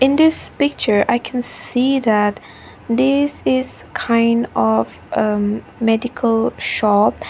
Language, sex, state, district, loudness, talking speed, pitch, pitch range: English, female, Nagaland, Dimapur, -17 LUFS, 105 wpm, 235 Hz, 210-260 Hz